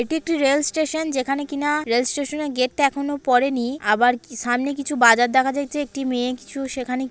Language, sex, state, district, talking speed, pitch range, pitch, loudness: Bengali, female, West Bengal, Kolkata, 200 wpm, 250-290 Hz, 275 Hz, -21 LUFS